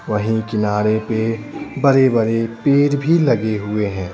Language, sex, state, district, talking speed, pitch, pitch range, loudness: Hindi, male, Bihar, Patna, 130 wpm, 110 Hz, 105-135 Hz, -17 LUFS